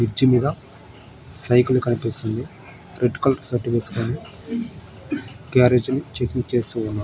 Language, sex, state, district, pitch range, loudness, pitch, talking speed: Telugu, male, Andhra Pradesh, Guntur, 115-130 Hz, -22 LUFS, 125 Hz, 110 wpm